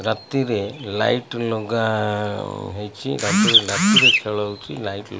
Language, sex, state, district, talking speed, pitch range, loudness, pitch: Odia, male, Odisha, Malkangiri, 105 wpm, 105-125 Hz, -19 LUFS, 110 Hz